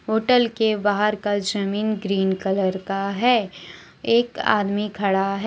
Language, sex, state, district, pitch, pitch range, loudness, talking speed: Hindi, female, Jharkhand, Deoghar, 205 Hz, 195-215 Hz, -21 LUFS, 145 wpm